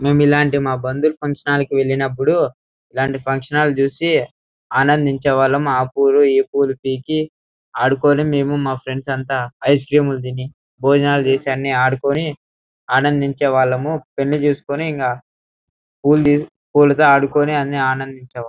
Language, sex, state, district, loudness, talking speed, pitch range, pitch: Telugu, male, Andhra Pradesh, Anantapur, -17 LUFS, 125 wpm, 135-145 Hz, 140 Hz